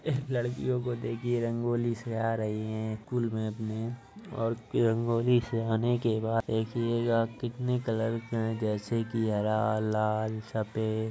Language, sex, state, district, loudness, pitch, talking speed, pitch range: Hindi, male, Uttar Pradesh, Jyotiba Phule Nagar, -30 LUFS, 115 Hz, 140 wpm, 110-120 Hz